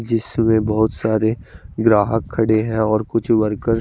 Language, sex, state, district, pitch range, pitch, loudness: Hindi, male, Chandigarh, Chandigarh, 110-115 Hz, 110 Hz, -18 LUFS